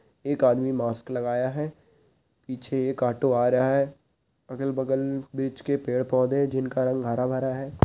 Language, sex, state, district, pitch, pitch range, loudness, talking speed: Hindi, male, Uttarakhand, Uttarkashi, 130 Hz, 125-135 Hz, -26 LUFS, 175 wpm